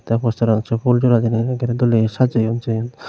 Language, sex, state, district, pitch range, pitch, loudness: Chakma, male, Tripura, Unakoti, 115-120 Hz, 115 Hz, -18 LUFS